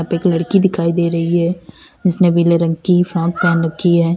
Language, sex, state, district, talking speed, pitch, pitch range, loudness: Hindi, female, Uttar Pradesh, Lalitpur, 215 wpm, 170 Hz, 170-180 Hz, -15 LUFS